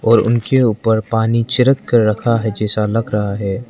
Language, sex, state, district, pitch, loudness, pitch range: Hindi, male, Arunachal Pradesh, Lower Dibang Valley, 115 Hz, -15 LUFS, 105-120 Hz